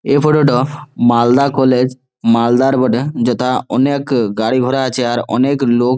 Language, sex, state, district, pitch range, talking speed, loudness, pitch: Bengali, male, West Bengal, Malda, 120-135 Hz, 150 wpm, -14 LUFS, 130 Hz